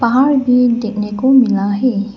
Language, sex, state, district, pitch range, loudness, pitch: Hindi, female, Arunachal Pradesh, Lower Dibang Valley, 210-255 Hz, -13 LUFS, 235 Hz